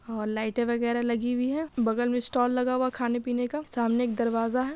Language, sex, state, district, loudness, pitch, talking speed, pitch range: Hindi, female, Bihar, Madhepura, -27 LUFS, 245 Hz, 240 wpm, 235-250 Hz